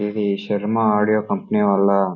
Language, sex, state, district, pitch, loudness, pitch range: Telugu, male, Karnataka, Bellary, 105 Hz, -19 LUFS, 100-105 Hz